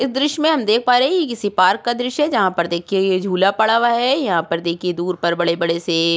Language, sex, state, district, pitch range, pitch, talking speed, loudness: Hindi, female, Uttarakhand, Tehri Garhwal, 170-245 Hz, 195 Hz, 290 wpm, -17 LUFS